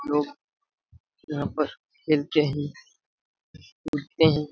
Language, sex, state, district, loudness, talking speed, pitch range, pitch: Hindi, male, Bihar, Jamui, -26 LUFS, 105 wpm, 145-155 Hz, 150 Hz